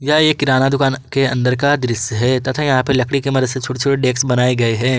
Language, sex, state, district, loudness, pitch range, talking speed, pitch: Hindi, male, Jharkhand, Garhwa, -16 LUFS, 125-135 Hz, 250 wpm, 130 Hz